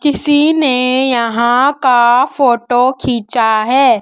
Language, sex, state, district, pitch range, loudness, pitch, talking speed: Hindi, male, Madhya Pradesh, Dhar, 240-280 Hz, -12 LUFS, 255 Hz, 105 wpm